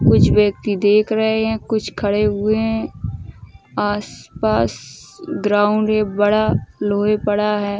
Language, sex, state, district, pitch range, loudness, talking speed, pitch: Hindi, female, Uttar Pradesh, Ghazipur, 125-215 Hz, -18 LUFS, 125 wpm, 205 Hz